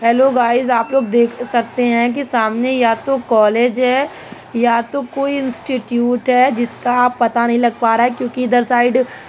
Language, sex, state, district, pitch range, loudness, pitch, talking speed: Hindi, female, Uttar Pradesh, Budaun, 235-255 Hz, -15 LUFS, 245 Hz, 185 wpm